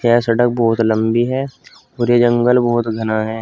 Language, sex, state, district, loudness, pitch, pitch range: Hindi, male, Uttar Pradesh, Saharanpur, -16 LUFS, 120 Hz, 115-120 Hz